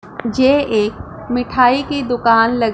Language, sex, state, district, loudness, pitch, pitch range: Hindi, female, Punjab, Pathankot, -15 LUFS, 245 Hz, 230-260 Hz